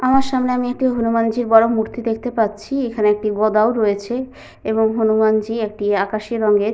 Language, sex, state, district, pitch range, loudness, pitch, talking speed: Bengali, female, Jharkhand, Sahebganj, 215-245 Hz, -18 LUFS, 225 Hz, 170 wpm